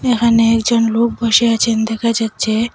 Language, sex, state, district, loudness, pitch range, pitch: Bengali, female, Assam, Hailakandi, -14 LUFS, 225-235 Hz, 230 Hz